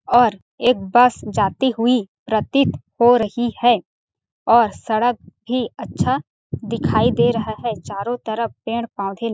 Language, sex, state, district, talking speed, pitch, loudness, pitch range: Hindi, female, Chhattisgarh, Balrampur, 135 wpm, 235 Hz, -19 LUFS, 220-245 Hz